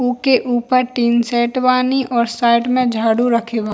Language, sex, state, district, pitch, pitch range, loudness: Bhojpuri, female, Bihar, East Champaran, 240 Hz, 235-255 Hz, -16 LUFS